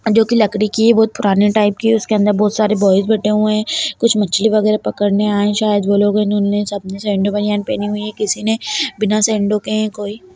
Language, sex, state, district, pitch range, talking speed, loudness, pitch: Kumaoni, female, Uttarakhand, Tehri Garhwal, 205-220 Hz, 235 wpm, -15 LUFS, 210 Hz